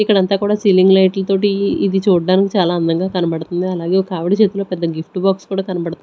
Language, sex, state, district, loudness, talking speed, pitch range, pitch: Telugu, female, Andhra Pradesh, Sri Satya Sai, -16 LUFS, 180 wpm, 175-195 Hz, 190 Hz